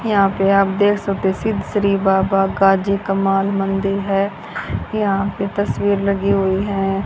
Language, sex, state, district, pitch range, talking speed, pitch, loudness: Hindi, female, Haryana, Jhajjar, 195-200 Hz, 155 wpm, 195 Hz, -18 LUFS